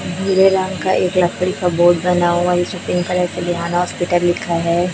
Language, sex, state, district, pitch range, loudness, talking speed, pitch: Hindi, female, Chhattisgarh, Raipur, 175-180 Hz, -16 LUFS, 205 wpm, 180 Hz